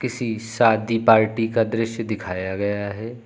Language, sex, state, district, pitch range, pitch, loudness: Hindi, male, Uttar Pradesh, Lucknow, 110-115 Hz, 115 Hz, -21 LUFS